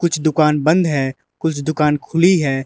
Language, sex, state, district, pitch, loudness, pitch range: Hindi, male, Arunachal Pradesh, Lower Dibang Valley, 155 Hz, -17 LUFS, 145-165 Hz